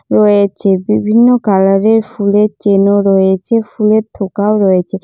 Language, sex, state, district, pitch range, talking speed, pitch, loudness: Bengali, female, West Bengal, Jalpaiguri, 195-215 Hz, 130 wpm, 200 Hz, -11 LUFS